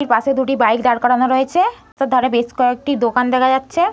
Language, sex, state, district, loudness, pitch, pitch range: Bengali, female, West Bengal, Malda, -16 LUFS, 255 Hz, 245-270 Hz